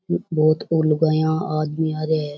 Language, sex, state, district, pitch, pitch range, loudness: Rajasthani, female, Rajasthan, Churu, 155 Hz, 155-160 Hz, -20 LUFS